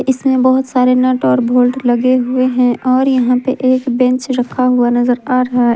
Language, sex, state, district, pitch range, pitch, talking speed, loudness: Hindi, female, Jharkhand, Ranchi, 245-255 Hz, 255 Hz, 220 wpm, -13 LUFS